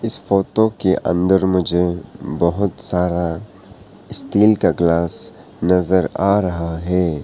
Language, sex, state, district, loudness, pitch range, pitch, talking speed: Hindi, male, Arunachal Pradesh, Papum Pare, -18 LUFS, 85-100 Hz, 90 Hz, 115 wpm